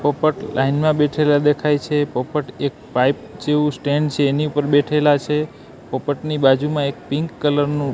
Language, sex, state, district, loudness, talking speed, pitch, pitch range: Gujarati, male, Gujarat, Gandhinagar, -19 LUFS, 165 wpm, 145 Hz, 140-150 Hz